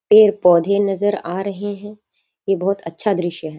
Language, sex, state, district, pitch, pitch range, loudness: Hindi, female, Bihar, Sitamarhi, 200 Hz, 175-205 Hz, -18 LUFS